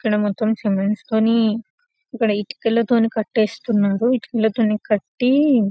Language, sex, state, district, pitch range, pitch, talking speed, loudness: Telugu, female, Telangana, Karimnagar, 210-235 Hz, 220 Hz, 105 wpm, -19 LUFS